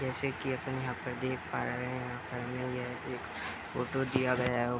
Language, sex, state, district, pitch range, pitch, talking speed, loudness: Hindi, male, Bihar, Sitamarhi, 125-130 Hz, 125 Hz, 210 wpm, -35 LUFS